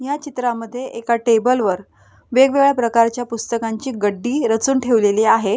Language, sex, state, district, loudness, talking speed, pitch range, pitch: Marathi, female, Maharashtra, Solapur, -18 LUFS, 120 wpm, 225-255 Hz, 235 Hz